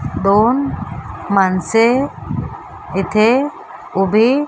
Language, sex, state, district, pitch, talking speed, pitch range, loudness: Marathi, female, Maharashtra, Mumbai Suburban, 220 Hz, 65 wpm, 195-255 Hz, -16 LUFS